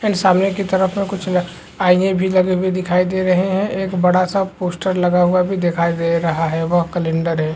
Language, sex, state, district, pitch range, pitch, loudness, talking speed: Hindi, male, Bihar, Supaul, 175-190 Hz, 185 Hz, -17 LUFS, 220 wpm